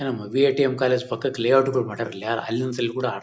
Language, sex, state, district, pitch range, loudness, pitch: Kannada, male, Karnataka, Bellary, 115-135 Hz, -23 LUFS, 125 Hz